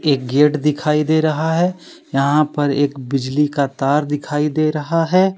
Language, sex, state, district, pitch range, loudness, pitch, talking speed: Hindi, male, Jharkhand, Deoghar, 140-155 Hz, -17 LUFS, 150 Hz, 180 wpm